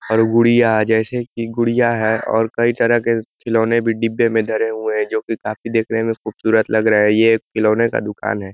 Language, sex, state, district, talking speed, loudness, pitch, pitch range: Hindi, male, Uttar Pradesh, Ghazipur, 225 wpm, -17 LUFS, 115 Hz, 110-115 Hz